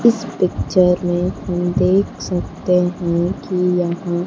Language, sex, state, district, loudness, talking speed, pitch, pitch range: Hindi, female, Bihar, Kaimur, -18 LUFS, 125 wpm, 180 Hz, 175-185 Hz